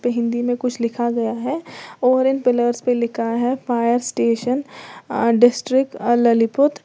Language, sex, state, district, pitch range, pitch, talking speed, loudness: Hindi, female, Uttar Pradesh, Lalitpur, 235-255 Hz, 240 Hz, 140 wpm, -19 LUFS